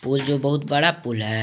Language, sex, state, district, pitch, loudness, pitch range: Hindi, male, Jharkhand, Garhwa, 140 Hz, -21 LUFS, 120-145 Hz